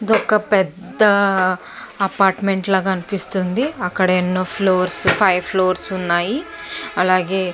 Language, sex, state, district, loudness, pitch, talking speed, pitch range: Telugu, female, Andhra Pradesh, Chittoor, -18 LUFS, 190 Hz, 110 wpm, 185-200 Hz